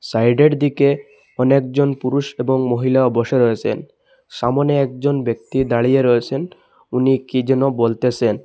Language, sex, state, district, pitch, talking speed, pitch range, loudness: Bengali, male, Assam, Hailakandi, 130 Hz, 130 wpm, 125-140 Hz, -17 LUFS